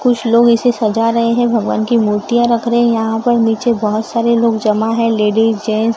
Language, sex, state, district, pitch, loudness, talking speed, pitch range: Hindi, female, Maharashtra, Gondia, 230 Hz, -14 LUFS, 230 wpm, 220-235 Hz